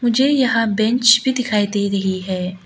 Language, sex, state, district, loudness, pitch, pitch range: Hindi, female, Arunachal Pradesh, Lower Dibang Valley, -17 LUFS, 220 Hz, 195-245 Hz